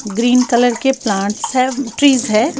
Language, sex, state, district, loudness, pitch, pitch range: Hindi, female, Bihar, Patna, -15 LUFS, 245 Hz, 215-265 Hz